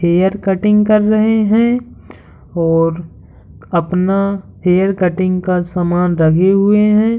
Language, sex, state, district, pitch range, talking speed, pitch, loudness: Hindi, male, Uttar Pradesh, Hamirpur, 175-210 Hz, 115 wpm, 185 Hz, -14 LUFS